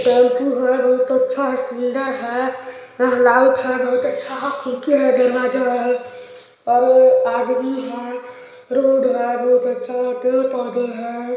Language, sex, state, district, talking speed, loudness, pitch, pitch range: Hindi, male, Chhattisgarh, Balrampur, 125 wpm, -18 LUFS, 255 Hz, 245-260 Hz